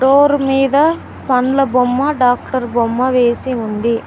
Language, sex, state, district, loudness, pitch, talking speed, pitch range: Telugu, female, Telangana, Mahabubabad, -14 LUFS, 255 Hz, 120 wpm, 245-270 Hz